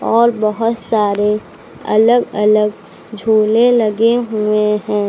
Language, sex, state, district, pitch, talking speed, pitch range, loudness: Hindi, female, Uttar Pradesh, Lucknow, 215 Hz, 105 wpm, 210-230 Hz, -14 LUFS